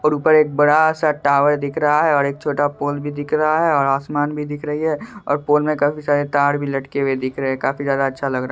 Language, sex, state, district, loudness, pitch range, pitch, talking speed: Hindi, male, Bihar, Supaul, -18 LUFS, 140-150 Hz, 145 Hz, 280 wpm